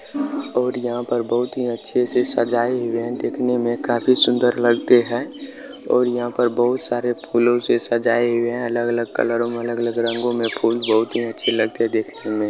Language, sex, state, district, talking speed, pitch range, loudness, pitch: Hindi, male, Bihar, Bhagalpur, 195 wpm, 120-125 Hz, -19 LUFS, 120 Hz